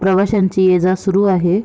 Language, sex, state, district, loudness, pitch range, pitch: Marathi, female, Maharashtra, Sindhudurg, -14 LUFS, 185-195 Hz, 190 Hz